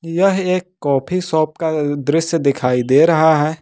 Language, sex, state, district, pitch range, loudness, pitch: Hindi, male, Jharkhand, Ranchi, 145-170 Hz, -16 LUFS, 160 Hz